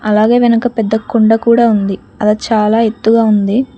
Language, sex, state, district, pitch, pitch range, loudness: Telugu, female, Telangana, Mahabubabad, 220 Hz, 210-230 Hz, -12 LUFS